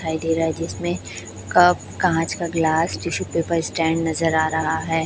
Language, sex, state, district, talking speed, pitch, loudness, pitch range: Hindi, male, Chhattisgarh, Raipur, 190 wpm, 160 Hz, -21 LUFS, 160-165 Hz